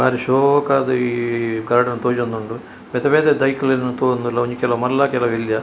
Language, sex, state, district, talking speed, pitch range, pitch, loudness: Tulu, male, Karnataka, Dakshina Kannada, 150 wpm, 120-135 Hz, 125 Hz, -18 LUFS